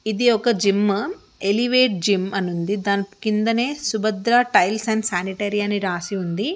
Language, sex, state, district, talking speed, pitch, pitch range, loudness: Telugu, female, Telangana, Karimnagar, 145 wpm, 205 Hz, 200-230 Hz, -20 LUFS